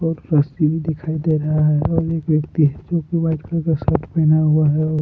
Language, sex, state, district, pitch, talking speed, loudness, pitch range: Hindi, male, Jharkhand, Palamu, 155 Hz, 240 wpm, -18 LUFS, 155-165 Hz